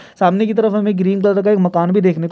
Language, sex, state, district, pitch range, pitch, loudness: Hindi, male, Bihar, Kishanganj, 180-210 Hz, 200 Hz, -15 LUFS